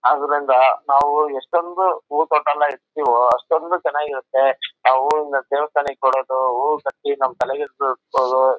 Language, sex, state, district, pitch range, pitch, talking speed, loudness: Kannada, male, Karnataka, Chamarajanagar, 130-160 Hz, 145 Hz, 125 wpm, -19 LUFS